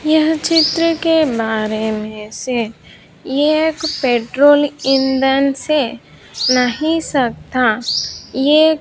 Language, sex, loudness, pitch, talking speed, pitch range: Hindi, female, -15 LUFS, 270 Hz, 90 wpm, 245-315 Hz